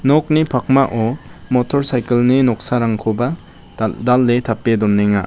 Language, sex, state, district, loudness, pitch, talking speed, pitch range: Garo, male, Meghalaya, West Garo Hills, -16 LUFS, 125 Hz, 100 wpm, 115-135 Hz